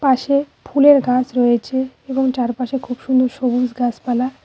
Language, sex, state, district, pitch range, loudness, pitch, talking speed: Bengali, female, West Bengal, Cooch Behar, 250-265 Hz, -17 LUFS, 255 Hz, 135 wpm